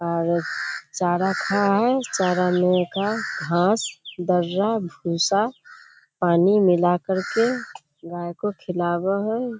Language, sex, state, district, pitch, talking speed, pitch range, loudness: Hindi, female, Bihar, Kishanganj, 185 Hz, 115 wpm, 175-205 Hz, -22 LUFS